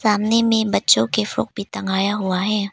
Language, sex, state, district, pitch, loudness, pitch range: Hindi, female, Arunachal Pradesh, Papum Pare, 205 Hz, -19 LUFS, 190-215 Hz